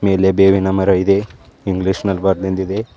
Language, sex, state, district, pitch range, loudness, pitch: Kannada, male, Karnataka, Bidar, 95-100 Hz, -16 LUFS, 95 Hz